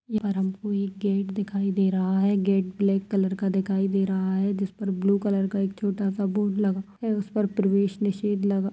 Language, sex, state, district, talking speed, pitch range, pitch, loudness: Kumaoni, female, Uttarakhand, Tehri Garhwal, 245 wpm, 195-200 Hz, 195 Hz, -25 LUFS